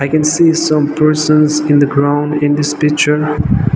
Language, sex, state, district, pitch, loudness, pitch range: English, male, Nagaland, Dimapur, 150 Hz, -12 LUFS, 145-155 Hz